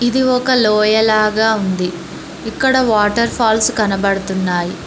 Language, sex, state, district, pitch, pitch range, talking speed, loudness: Telugu, female, Telangana, Mahabubabad, 215 Hz, 195-235 Hz, 100 wpm, -14 LUFS